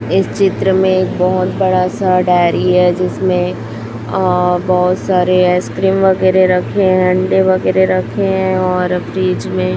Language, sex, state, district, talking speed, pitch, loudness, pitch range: Hindi, female, Chhattisgarh, Raipur, 155 wpm, 185 Hz, -13 LUFS, 180-190 Hz